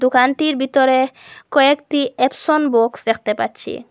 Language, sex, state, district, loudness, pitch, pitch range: Bengali, female, Assam, Hailakandi, -17 LUFS, 265 Hz, 250-290 Hz